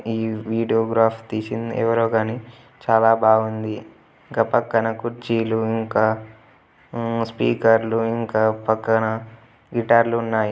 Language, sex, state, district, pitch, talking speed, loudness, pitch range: Telugu, male, Telangana, Nalgonda, 115 Hz, 105 wpm, -21 LUFS, 110-115 Hz